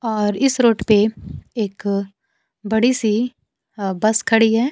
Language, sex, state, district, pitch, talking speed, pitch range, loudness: Hindi, female, Bihar, Kaimur, 220 Hz, 140 wpm, 205-235 Hz, -18 LUFS